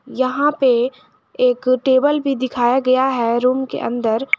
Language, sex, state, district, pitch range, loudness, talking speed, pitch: Hindi, female, Jharkhand, Garhwa, 245-265 Hz, -17 LUFS, 150 wpm, 255 Hz